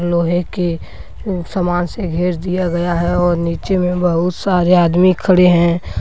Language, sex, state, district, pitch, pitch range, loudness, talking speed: Hindi, male, Jharkhand, Deoghar, 175 Hz, 170-180 Hz, -15 LUFS, 170 wpm